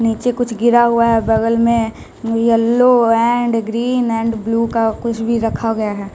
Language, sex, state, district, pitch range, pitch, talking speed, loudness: Hindi, male, Bihar, West Champaran, 225-235 Hz, 230 Hz, 185 wpm, -15 LUFS